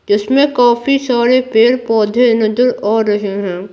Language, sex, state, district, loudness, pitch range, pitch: Hindi, female, Bihar, Patna, -13 LUFS, 210-250 Hz, 235 Hz